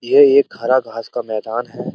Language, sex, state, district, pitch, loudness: Hindi, male, Uttar Pradesh, Muzaffarnagar, 130 Hz, -17 LUFS